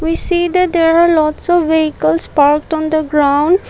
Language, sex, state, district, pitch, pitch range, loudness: English, female, Assam, Kamrup Metropolitan, 315 Hz, 300-340 Hz, -13 LUFS